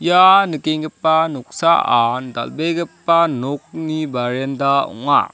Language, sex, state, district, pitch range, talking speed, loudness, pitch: Garo, male, Meghalaya, South Garo Hills, 135-165 Hz, 80 wpm, -17 LUFS, 155 Hz